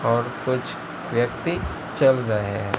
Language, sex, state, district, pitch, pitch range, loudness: Hindi, male, Gujarat, Gandhinagar, 120 Hz, 105-125 Hz, -24 LUFS